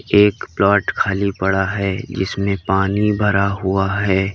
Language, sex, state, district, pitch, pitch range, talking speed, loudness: Hindi, male, Uttar Pradesh, Lalitpur, 100 Hz, 95-100 Hz, 150 wpm, -18 LUFS